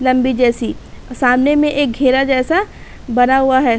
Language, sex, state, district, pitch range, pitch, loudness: Hindi, female, Uttar Pradesh, Hamirpur, 250-270 Hz, 260 Hz, -14 LUFS